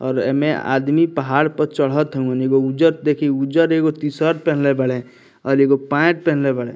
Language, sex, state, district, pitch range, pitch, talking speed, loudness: Bhojpuri, male, Bihar, Muzaffarpur, 135-155 Hz, 140 Hz, 180 wpm, -18 LUFS